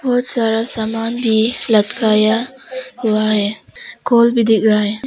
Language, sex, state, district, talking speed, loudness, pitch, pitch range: Hindi, female, Arunachal Pradesh, Papum Pare, 140 wpm, -15 LUFS, 225 Hz, 215-245 Hz